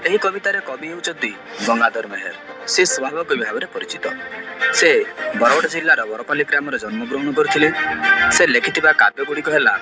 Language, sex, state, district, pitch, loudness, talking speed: Odia, male, Odisha, Malkangiri, 220 Hz, -17 LUFS, 155 wpm